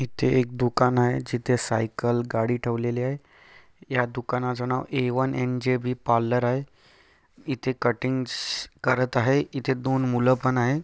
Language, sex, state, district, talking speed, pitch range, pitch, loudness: Marathi, male, Maharashtra, Chandrapur, 155 wpm, 120-130 Hz, 125 Hz, -25 LUFS